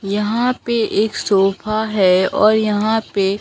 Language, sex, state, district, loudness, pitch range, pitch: Hindi, female, Bihar, Katihar, -16 LUFS, 195-220 Hz, 210 Hz